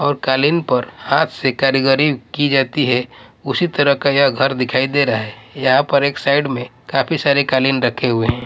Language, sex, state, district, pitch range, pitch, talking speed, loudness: Hindi, male, Odisha, Malkangiri, 125-140 Hz, 135 Hz, 205 wpm, -16 LUFS